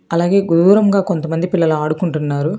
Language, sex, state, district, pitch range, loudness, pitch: Telugu, female, Telangana, Hyderabad, 155-190 Hz, -15 LUFS, 170 Hz